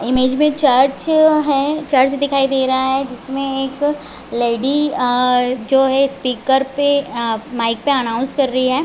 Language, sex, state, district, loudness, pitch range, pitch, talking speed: Hindi, female, Chhattisgarh, Raigarh, -15 LUFS, 250-280 Hz, 270 Hz, 155 wpm